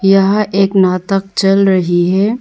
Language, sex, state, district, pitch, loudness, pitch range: Hindi, female, Arunachal Pradesh, Papum Pare, 195 Hz, -12 LUFS, 190-195 Hz